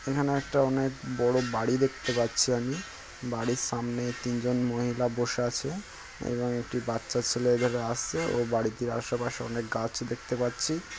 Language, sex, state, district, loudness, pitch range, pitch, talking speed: Bengali, male, West Bengal, Kolkata, -29 LUFS, 120-125 Hz, 120 Hz, 155 wpm